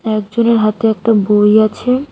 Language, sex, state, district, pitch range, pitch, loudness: Bengali, female, West Bengal, Alipurduar, 215-230 Hz, 220 Hz, -13 LUFS